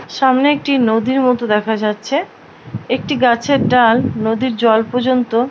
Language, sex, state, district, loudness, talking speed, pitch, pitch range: Bengali, female, West Bengal, Paschim Medinipur, -15 LUFS, 140 wpm, 245 Hz, 225-265 Hz